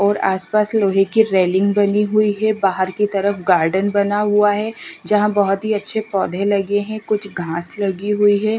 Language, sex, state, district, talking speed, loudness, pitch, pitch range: Hindi, female, Odisha, Malkangiri, 190 wpm, -17 LUFS, 205 Hz, 195-210 Hz